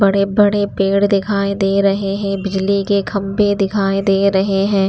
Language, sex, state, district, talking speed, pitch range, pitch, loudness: Hindi, female, Punjab, Pathankot, 160 wpm, 195-200 Hz, 200 Hz, -16 LUFS